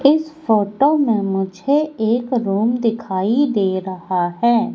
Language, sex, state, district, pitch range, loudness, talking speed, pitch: Hindi, female, Madhya Pradesh, Katni, 195-270 Hz, -18 LUFS, 125 wpm, 225 Hz